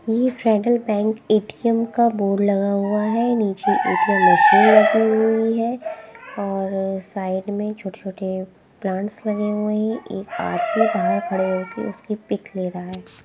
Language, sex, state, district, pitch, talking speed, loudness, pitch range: Hindi, female, Haryana, Jhajjar, 215 Hz, 160 wpm, -20 LUFS, 195-225 Hz